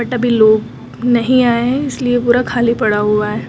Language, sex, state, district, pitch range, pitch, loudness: Hindi, female, Uttar Pradesh, Lucknow, 220-245 Hz, 240 Hz, -14 LUFS